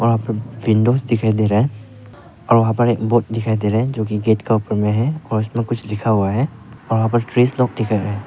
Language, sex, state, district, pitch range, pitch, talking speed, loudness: Hindi, male, Arunachal Pradesh, Papum Pare, 110-120 Hz, 115 Hz, 225 wpm, -18 LUFS